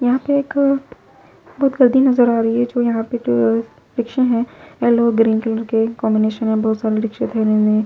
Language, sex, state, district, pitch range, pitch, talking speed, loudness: Hindi, female, Punjab, Pathankot, 220-250 Hz, 230 Hz, 215 wpm, -17 LUFS